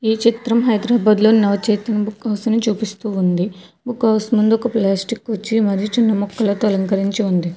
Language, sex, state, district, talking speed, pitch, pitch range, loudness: Telugu, female, Telangana, Hyderabad, 165 wpm, 215 Hz, 200-225 Hz, -17 LUFS